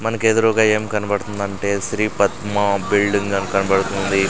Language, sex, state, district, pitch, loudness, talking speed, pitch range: Telugu, male, Andhra Pradesh, Sri Satya Sai, 100 Hz, -19 LUFS, 110 wpm, 100-105 Hz